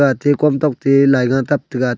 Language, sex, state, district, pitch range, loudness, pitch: Wancho, male, Arunachal Pradesh, Longding, 130-145 Hz, -15 LUFS, 140 Hz